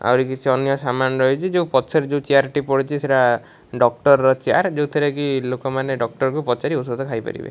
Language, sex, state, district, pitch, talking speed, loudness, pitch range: Odia, male, Odisha, Malkangiri, 135 Hz, 190 wpm, -19 LUFS, 130-145 Hz